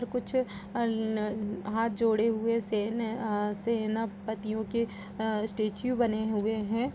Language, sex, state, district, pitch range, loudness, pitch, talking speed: Hindi, female, Uttar Pradesh, Budaun, 215-230 Hz, -31 LUFS, 220 Hz, 155 wpm